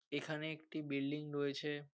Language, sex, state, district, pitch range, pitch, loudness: Bengali, male, West Bengal, North 24 Parganas, 145-155 Hz, 145 Hz, -42 LUFS